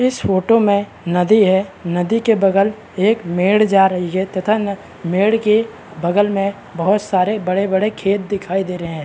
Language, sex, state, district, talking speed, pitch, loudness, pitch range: Hindi, male, Chhattisgarh, Balrampur, 185 wpm, 195 Hz, -17 LUFS, 185-210 Hz